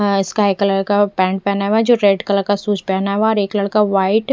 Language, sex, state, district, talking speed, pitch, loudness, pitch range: Hindi, female, Punjab, Fazilka, 290 wpm, 200 Hz, -16 LUFS, 195-210 Hz